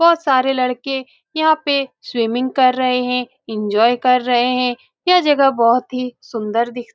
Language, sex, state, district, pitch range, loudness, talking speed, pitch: Hindi, female, Bihar, Saran, 240-270 Hz, -17 LUFS, 170 wpm, 250 Hz